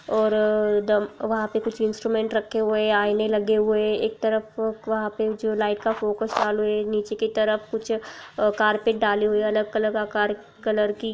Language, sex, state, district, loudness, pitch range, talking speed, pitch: Hindi, female, Uttar Pradesh, Jalaun, -23 LUFS, 210-220 Hz, 195 wpm, 215 Hz